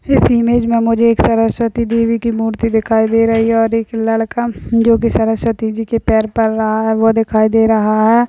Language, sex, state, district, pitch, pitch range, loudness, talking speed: Hindi, female, Chhattisgarh, Bastar, 225 Hz, 220-230 Hz, -14 LUFS, 215 wpm